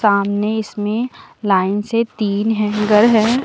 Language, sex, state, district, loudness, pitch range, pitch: Hindi, female, Uttar Pradesh, Lucknow, -17 LUFS, 205-220 Hz, 210 Hz